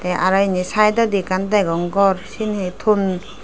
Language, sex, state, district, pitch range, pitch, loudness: Chakma, female, Tripura, Dhalai, 185-210 Hz, 195 Hz, -18 LUFS